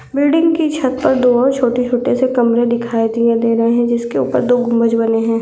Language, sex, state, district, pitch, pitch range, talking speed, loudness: Hindi, female, Maharashtra, Chandrapur, 240 Hz, 230-260 Hz, 190 wpm, -14 LUFS